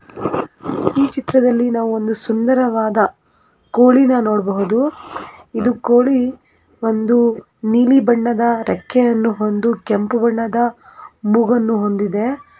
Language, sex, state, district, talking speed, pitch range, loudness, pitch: Kannada, female, Karnataka, Gulbarga, 90 wpm, 220-250 Hz, -16 LUFS, 235 Hz